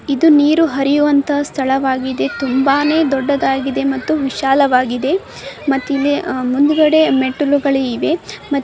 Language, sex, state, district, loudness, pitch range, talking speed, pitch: Kannada, female, Karnataka, Dharwad, -15 LUFS, 270-295 Hz, 90 wpm, 280 Hz